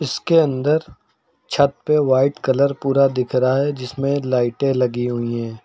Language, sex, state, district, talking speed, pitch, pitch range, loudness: Hindi, male, Uttar Pradesh, Lucknow, 160 wpm, 135 Hz, 125-140 Hz, -19 LUFS